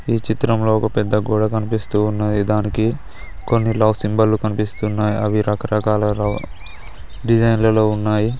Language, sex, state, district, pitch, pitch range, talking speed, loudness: Telugu, male, Telangana, Mahabubabad, 105 Hz, 105-110 Hz, 120 wpm, -18 LUFS